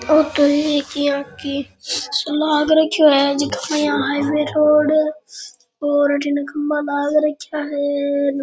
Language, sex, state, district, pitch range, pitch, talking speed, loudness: Rajasthani, male, Rajasthan, Churu, 285-300 Hz, 290 Hz, 130 wpm, -18 LUFS